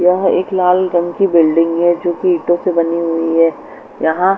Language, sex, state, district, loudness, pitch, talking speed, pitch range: Hindi, female, Chandigarh, Chandigarh, -14 LUFS, 175 Hz, 190 wpm, 165-180 Hz